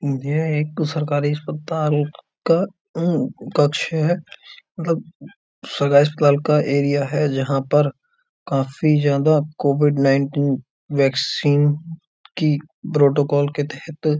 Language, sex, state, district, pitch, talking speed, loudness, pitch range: Hindi, male, Uttar Pradesh, Budaun, 150 Hz, 105 wpm, -20 LUFS, 145-160 Hz